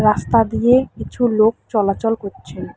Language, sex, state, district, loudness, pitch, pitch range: Bengali, female, West Bengal, Alipurduar, -17 LUFS, 225 Hz, 210-240 Hz